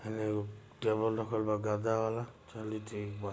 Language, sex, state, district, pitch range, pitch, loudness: Bhojpuri, male, Bihar, Gopalganj, 105-110 Hz, 110 Hz, -35 LUFS